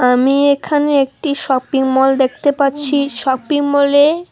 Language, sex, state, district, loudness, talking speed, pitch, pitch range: Bengali, female, West Bengal, Alipurduar, -14 LUFS, 110 wpm, 280 Hz, 265-285 Hz